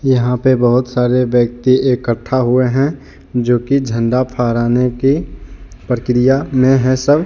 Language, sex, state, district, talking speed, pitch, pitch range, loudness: Hindi, male, Jharkhand, Deoghar, 130 wpm, 125 Hz, 120-130 Hz, -14 LUFS